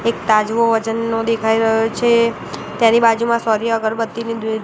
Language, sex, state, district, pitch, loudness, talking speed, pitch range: Gujarati, female, Gujarat, Gandhinagar, 225 Hz, -16 LUFS, 155 wpm, 220-230 Hz